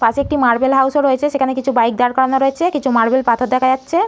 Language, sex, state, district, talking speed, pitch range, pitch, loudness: Bengali, female, West Bengal, North 24 Parganas, 250 wpm, 250-280 Hz, 265 Hz, -15 LUFS